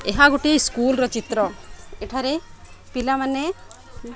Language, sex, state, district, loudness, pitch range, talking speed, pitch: Odia, female, Odisha, Khordha, -21 LUFS, 230-285 Hz, 115 wpm, 260 Hz